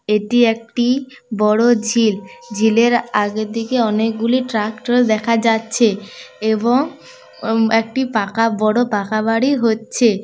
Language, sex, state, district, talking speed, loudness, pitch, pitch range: Bengali, female, West Bengal, Paschim Medinipur, 110 wpm, -17 LUFS, 225 Hz, 215-240 Hz